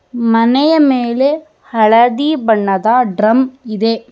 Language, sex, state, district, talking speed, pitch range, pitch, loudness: Kannada, female, Karnataka, Bangalore, 85 wpm, 225-265 Hz, 240 Hz, -12 LUFS